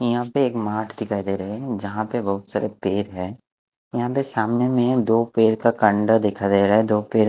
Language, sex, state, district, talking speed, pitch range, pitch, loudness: Hindi, male, Bihar, West Champaran, 240 wpm, 105-120 Hz, 110 Hz, -21 LUFS